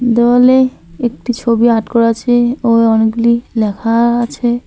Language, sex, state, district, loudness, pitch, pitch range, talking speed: Bengali, male, West Bengal, Alipurduar, -12 LUFS, 235 Hz, 230-240 Hz, 130 wpm